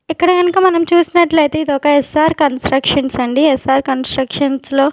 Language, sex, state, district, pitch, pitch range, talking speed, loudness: Telugu, female, Andhra Pradesh, Sri Satya Sai, 290 Hz, 270-325 Hz, 145 wpm, -13 LUFS